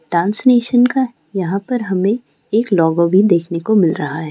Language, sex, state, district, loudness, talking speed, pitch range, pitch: Hindi, female, Bihar, Saran, -16 LUFS, 195 wpm, 170-235 Hz, 195 Hz